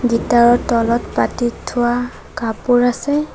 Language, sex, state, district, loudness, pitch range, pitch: Assamese, female, Assam, Sonitpur, -17 LUFS, 235-245 Hz, 240 Hz